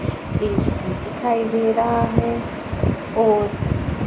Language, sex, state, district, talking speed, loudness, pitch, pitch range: Hindi, female, Punjab, Pathankot, 90 wpm, -21 LUFS, 225 Hz, 225-230 Hz